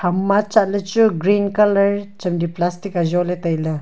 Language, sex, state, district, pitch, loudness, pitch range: Wancho, female, Arunachal Pradesh, Longding, 195 Hz, -18 LUFS, 175-200 Hz